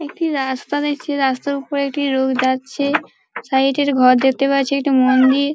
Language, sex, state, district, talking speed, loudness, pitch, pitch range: Bengali, female, West Bengal, Paschim Medinipur, 160 wpm, -17 LUFS, 275 Hz, 265-285 Hz